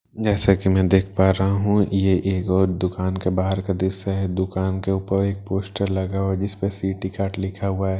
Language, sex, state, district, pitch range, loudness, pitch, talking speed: Hindi, male, Bihar, Katihar, 95-100 Hz, -22 LUFS, 95 Hz, 235 wpm